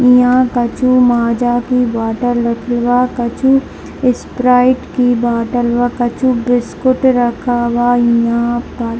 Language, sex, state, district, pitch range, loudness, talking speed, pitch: Hindi, female, Bihar, Darbhanga, 240-250 Hz, -13 LUFS, 125 wpm, 245 Hz